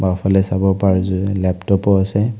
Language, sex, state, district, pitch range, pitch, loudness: Assamese, male, Assam, Kamrup Metropolitan, 95-100 Hz, 95 Hz, -16 LUFS